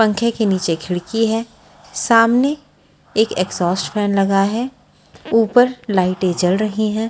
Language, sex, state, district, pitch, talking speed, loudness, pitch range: Hindi, female, Bihar, Patna, 215 Hz, 145 wpm, -17 LUFS, 185-230 Hz